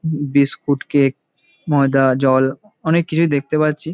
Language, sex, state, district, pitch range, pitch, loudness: Bengali, male, West Bengal, Kolkata, 135-160 Hz, 145 Hz, -17 LUFS